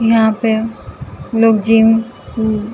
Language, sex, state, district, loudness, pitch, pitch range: Hindi, female, Uttar Pradesh, Jalaun, -14 LUFS, 225 Hz, 220-225 Hz